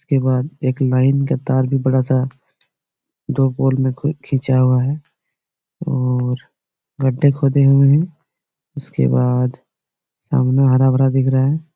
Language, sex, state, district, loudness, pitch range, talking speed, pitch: Hindi, male, Chhattisgarh, Bastar, -17 LUFS, 130-140 Hz, 140 wpm, 135 Hz